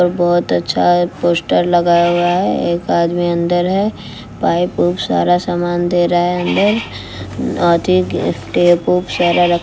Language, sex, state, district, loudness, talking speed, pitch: Hindi, female, Bihar, West Champaran, -15 LUFS, 150 wpm, 175 Hz